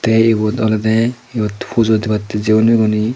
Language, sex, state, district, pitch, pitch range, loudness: Chakma, male, Tripura, Dhalai, 110 Hz, 110-115 Hz, -15 LUFS